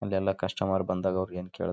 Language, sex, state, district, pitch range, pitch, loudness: Kannada, male, Karnataka, Raichur, 90-95 Hz, 95 Hz, -30 LUFS